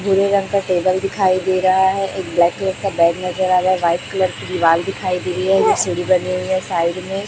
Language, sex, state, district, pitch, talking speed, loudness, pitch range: Hindi, female, Chhattisgarh, Raipur, 185 Hz, 255 wpm, -17 LUFS, 180-190 Hz